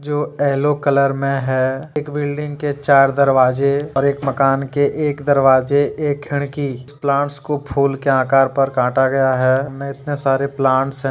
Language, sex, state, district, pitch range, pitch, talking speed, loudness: Hindi, male, Jharkhand, Deoghar, 135-145 Hz, 140 Hz, 165 wpm, -17 LUFS